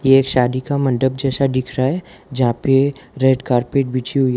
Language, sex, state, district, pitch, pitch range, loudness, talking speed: Hindi, male, Gujarat, Valsad, 130 Hz, 130-135 Hz, -18 LUFS, 205 wpm